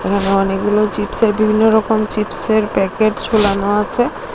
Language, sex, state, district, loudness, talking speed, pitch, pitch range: Bengali, female, Tripura, Unakoti, -15 LUFS, 110 wpm, 215 Hz, 200-220 Hz